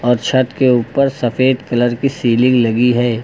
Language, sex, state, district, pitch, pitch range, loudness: Hindi, male, Uttar Pradesh, Lucknow, 125 Hz, 120-130 Hz, -14 LUFS